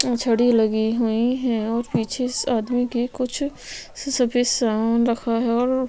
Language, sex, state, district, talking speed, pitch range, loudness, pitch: Hindi, female, Chhattisgarh, Sukma, 155 wpm, 230-250 Hz, -21 LUFS, 240 Hz